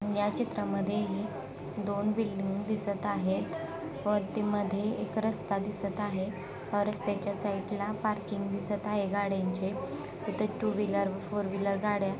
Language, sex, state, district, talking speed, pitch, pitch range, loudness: Marathi, female, Maharashtra, Sindhudurg, 140 wpm, 205 Hz, 195-210 Hz, -33 LUFS